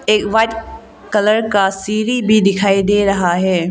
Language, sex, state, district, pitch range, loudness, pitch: Hindi, female, Arunachal Pradesh, Longding, 195-220 Hz, -15 LUFS, 210 Hz